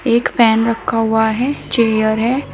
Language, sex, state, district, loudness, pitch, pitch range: Hindi, female, Uttar Pradesh, Shamli, -15 LUFS, 230 Hz, 220-240 Hz